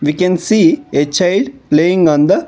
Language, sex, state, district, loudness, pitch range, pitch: English, male, Karnataka, Bangalore, -13 LUFS, 145-190 Hz, 170 Hz